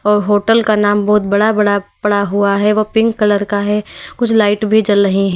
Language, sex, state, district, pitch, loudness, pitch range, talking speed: Hindi, female, Uttar Pradesh, Lalitpur, 210 Hz, -13 LUFS, 205-215 Hz, 225 wpm